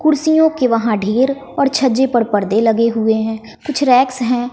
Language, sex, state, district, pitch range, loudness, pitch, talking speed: Hindi, female, Bihar, West Champaran, 225-270 Hz, -15 LUFS, 245 Hz, 185 wpm